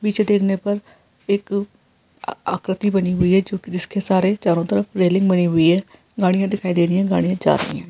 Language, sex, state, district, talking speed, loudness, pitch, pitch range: Hindi, female, Rajasthan, Nagaur, 195 wpm, -19 LUFS, 190 Hz, 180-200 Hz